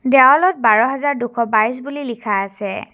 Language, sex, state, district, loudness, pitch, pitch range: Assamese, female, Assam, Kamrup Metropolitan, -16 LUFS, 250 Hz, 220-285 Hz